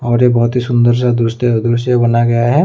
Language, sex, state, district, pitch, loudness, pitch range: Hindi, male, Odisha, Khordha, 120 Hz, -13 LUFS, 120-125 Hz